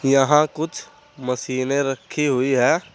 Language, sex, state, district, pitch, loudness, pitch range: Hindi, male, Uttar Pradesh, Saharanpur, 135 Hz, -20 LUFS, 130-150 Hz